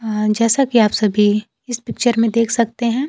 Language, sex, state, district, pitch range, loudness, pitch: Hindi, female, Bihar, Kaimur, 215-240 Hz, -16 LUFS, 230 Hz